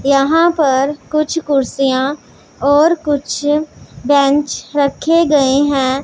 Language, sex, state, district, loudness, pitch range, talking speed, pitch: Hindi, female, Punjab, Pathankot, -14 LUFS, 275-305 Hz, 100 wpm, 285 Hz